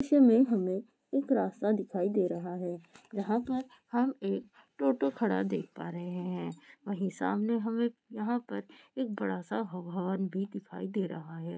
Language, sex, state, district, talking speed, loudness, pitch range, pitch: Hindi, female, Rajasthan, Churu, 165 wpm, -32 LUFS, 175-235 Hz, 195 Hz